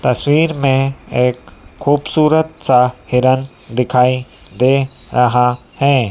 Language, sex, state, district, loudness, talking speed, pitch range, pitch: Hindi, female, Madhya Pradesh, Dhar, -15 LUFS, 100 wpm, 125-140 Hz, 130 Hz